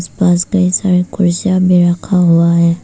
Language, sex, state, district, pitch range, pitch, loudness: Hindi, female, Arunachal Pradesh, Papum Pare, 175-185 Hz, 180 Hz, -12 LUFS